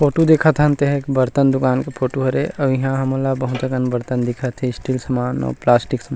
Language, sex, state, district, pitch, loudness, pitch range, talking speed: Chhattisgarhi, male, Chhattisgarh, Rajnandgaon, 130 Hz, -18 LUFS, 125-140 Hz, 245 wpm